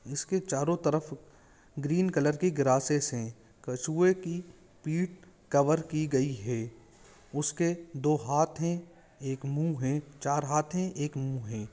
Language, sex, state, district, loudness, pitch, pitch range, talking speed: Hindi, male, Jharkhand, Jamtara, -30 LUFS, 150 Hz, 135-170 Hz, 140 wpm